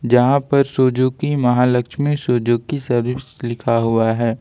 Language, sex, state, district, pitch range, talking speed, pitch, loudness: Hindi, male, Jharkhand, Ranchi, 120-140 Hz, 120 wpm, 125 Hz, -18 LUFS